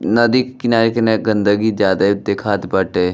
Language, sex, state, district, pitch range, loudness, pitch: Bhojpuri, male, Uttar Pradesh, Deoria, 100-115 Hz, -16 LUFS, 105 Hz